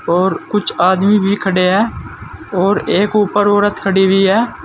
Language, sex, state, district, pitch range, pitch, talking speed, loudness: Hindi, male, Uttar Pradesh, Saharanpur, 190-205 Hz, 195 Hz, 170 wpm, -14 LUFS